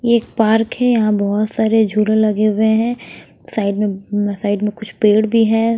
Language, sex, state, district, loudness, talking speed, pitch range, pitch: Hindi, female, Haryana, Rohtak, -16 LUFS, 185 wpm, 210-225 Hz, 220 Hz